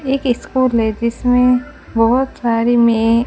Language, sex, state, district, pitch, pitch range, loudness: Hindi, female, Rajasthan, Bikaner, 240 Hz, 230-255 Hz, -15 LUFS